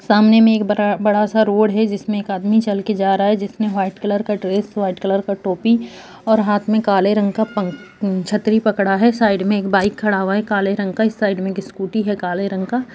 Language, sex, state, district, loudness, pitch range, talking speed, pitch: Hindi, female, Bihar, Saharsa, -17 LUFS, 195-215 Hz, 250 wpm, 205 Hz